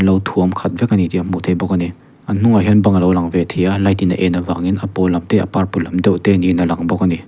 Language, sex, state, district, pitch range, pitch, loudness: Mizo, male, Mizoram, Aizawl, 90-100 Hz, 90 Hz, -16 LUFS